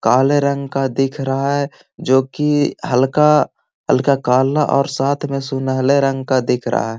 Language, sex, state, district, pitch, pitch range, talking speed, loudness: Magahi, male, Bihar, Gaya, 135 Hz, 130-140 Hz, 170 wpm, -17 LUFS